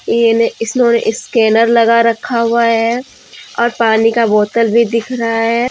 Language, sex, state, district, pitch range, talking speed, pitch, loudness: Hindi, female, Jharkhand, Deoghar, 225-235 Hz, 145 wpm, 230 Hz, -13 LUFS